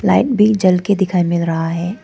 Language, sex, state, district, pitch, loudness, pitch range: Hindi, female, Arunachal Pradesh, Lower Dibang Valley, 180 Hz, -15 LUFS, 170-200 Hz